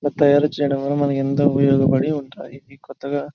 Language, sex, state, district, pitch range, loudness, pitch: Telugu, male, Andhra Pradesh, Chittoor, 140-145 Hz, -19 LUFS, 140 Hz